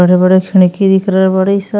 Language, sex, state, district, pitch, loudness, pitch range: Bhojpuri, female, Uttar Pradesh, Ghazipur, 190 Hz, -10 LUFS, 185-195 Hz